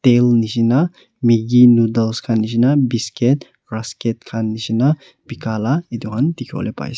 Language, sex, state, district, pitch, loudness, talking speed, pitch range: Nagamese, male, Nagaland, Kohima, 120 Hz, -17 LUFS, 165 wpm, 115-130 Hz